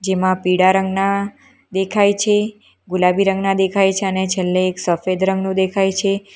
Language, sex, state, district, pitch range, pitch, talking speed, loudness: Gujarati, female, Gujarat, Valsad, 185-200 Hz, 190 Hz, 150 wpm, -17 LUFS